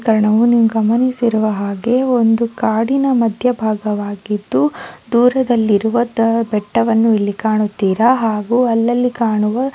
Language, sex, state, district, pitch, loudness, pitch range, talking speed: Kannada, female, Karnataka, Chamarajanagar, 225 Hz, -15 LUFS, 215-240 Hz, 90 wpm